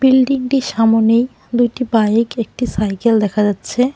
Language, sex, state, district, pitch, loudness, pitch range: Bengali, female, West Bengal, Cooch Behar, 235 Hz, -16 LUFS, 220-255 Hz